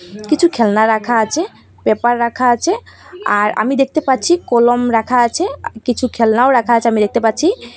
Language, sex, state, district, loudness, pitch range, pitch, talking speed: Bengali, female, Assam, Hailakandi, -14 LUFS, 225-280 Hz, 240 Hz, 170 wpm